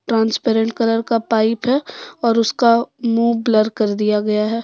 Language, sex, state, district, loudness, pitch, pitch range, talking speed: Hindi, female, Jharkhand, Deoghar, -17 LUFS, 225 Hz, 220-235 Hz, 170 wpm